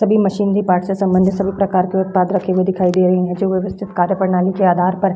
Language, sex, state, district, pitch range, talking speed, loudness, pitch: Hindi, female, Bihar, Vaishali, 185-195 Hz, 265 wpm, -16 LUFS, 190 Hz